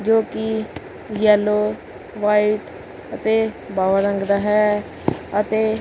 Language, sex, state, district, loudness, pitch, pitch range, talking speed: Punjabi, male, Punjab, Kapurthala, -20 LUFS, 210 Hz, 205-220 Hz, 105 wpm